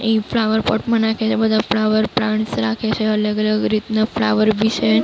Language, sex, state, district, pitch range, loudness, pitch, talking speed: Gujarati, female, Maharashtra, Mumbai Suburban, 210-220 Hz, -18 LUFS, 215 Hz, 190 wpm